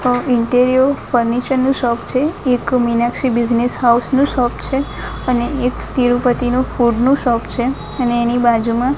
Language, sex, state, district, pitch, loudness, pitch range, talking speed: Gujarati, female, Gujarat, Gandhinagar, 245 Hz, -15 LUFS, 240-260 Hz, 165 wpm